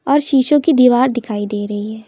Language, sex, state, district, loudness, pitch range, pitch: Hindi, female, Uttar Pradesh, Lucknow, -15 LUFS, 210-280 Hz, 250 Hz